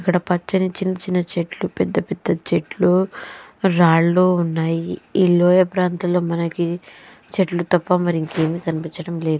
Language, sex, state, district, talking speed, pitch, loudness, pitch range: Telugu, female, Andhra Pradesh, Chittoor, 130 wpm, 175 Hz, -19 LUFS, 170-185 Hz